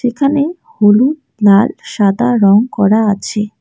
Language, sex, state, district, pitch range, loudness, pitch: Bengali, female, West Bengal, Alipurduar, 205-275 Hz, -12 LUFS, 220 Hz